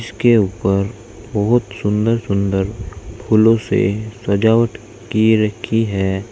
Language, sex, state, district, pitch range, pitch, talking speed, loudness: Hindi, male, Uttar Pradesh, Saharanpur, 100-115 Hz, 110 Hz, 105 wpm, -17 LUFS